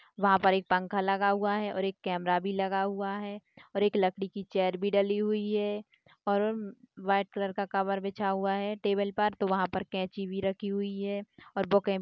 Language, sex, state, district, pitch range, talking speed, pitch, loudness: Hindi, female, Chhattisgarh, Sarguja, 195-205 Hz, 220 wpm, 200 Hz, -30 LUFS